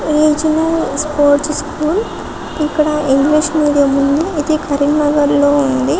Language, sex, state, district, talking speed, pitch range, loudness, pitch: Telugu, female, Telangana, Karimnagar, 70 wpm, 285-305 Hz, -14 LUFS, 300 Hz